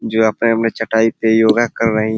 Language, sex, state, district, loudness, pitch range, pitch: Hindi, male, Uttar Pradesh, Ghazipur, -15 LUFS, 110-115 Hz, 110 Hz